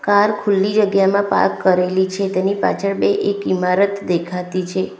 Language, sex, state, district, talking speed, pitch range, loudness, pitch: Gujarati, female, Gujarat, Valsad, 155 wpm, 180-200 Hz, -17 LUFS, 195 Hz